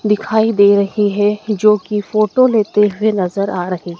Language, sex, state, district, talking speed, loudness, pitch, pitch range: Hindi, female, Madhya Pradesh, Dhar, 180 wpm, -14 LUFS, 210 Hz, 200-215 Hz